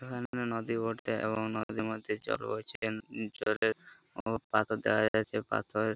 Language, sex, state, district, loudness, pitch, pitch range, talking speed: Bengali, male, West Bengal, Purulia, -34 LUFS, 110 Hz, 110-115 Hz, 160 wpm